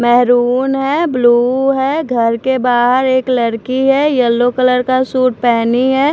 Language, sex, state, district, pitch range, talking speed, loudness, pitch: Hindi, female, Maharashtra, Washim, 240-265 Hz, 155 wpm, -13 LUFS, 255 Hz